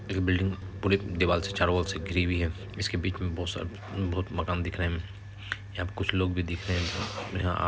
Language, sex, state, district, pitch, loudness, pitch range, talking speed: Hindi, male, Bihar, Araria, 95 Hz, -30 LUFS, 90-100 Hz, 240 wpm